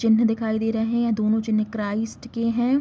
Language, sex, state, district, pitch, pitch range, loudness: Hindi, female, Bihar, Vaishali, 225 Hz, 220-230 Hz, -23 LUFS